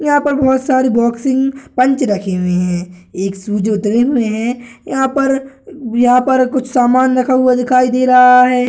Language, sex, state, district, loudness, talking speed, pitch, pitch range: Hindi, male, Bihar, Gaya, -13 LUFS, 180 wpm, 250 Hz, 235-265 Hz